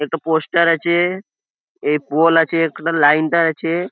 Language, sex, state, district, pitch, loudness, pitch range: Bengali, male, West Bengal, Purulia, 165 Hz, -16 LUFS, 155-170 Hz